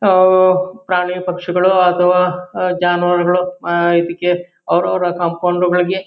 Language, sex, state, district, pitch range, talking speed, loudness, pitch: Kannada, male, Karnataka, Shimoga, 175-185 Hz, 110 wpm, -15 LUFS, 180 Hz